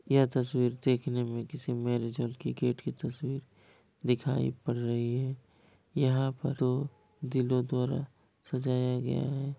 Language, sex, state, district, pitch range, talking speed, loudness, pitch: Hindi, male, Bihar, Kishanganj, 120-135 Hz, 145 wpm, -32 LUFS, 125 Hz